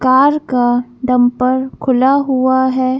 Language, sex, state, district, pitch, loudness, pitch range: Hindi, female, Madhya Pradesh, Bhopal, 255 Hz, -14 LUFS, 250-260 Hz